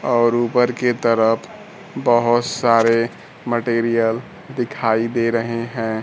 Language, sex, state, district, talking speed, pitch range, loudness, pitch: Hindi, male, Bihar, Kaimur, 110 wpm, 115-120 Hz, -18 LUFS, 115 Hz